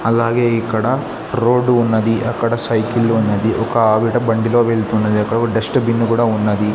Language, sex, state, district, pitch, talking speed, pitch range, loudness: Telugu, male, Andhra Pradesh, Sri Satya Sai, 115 Hz, 150 wpm, 110-120 Hz, -16 LUFS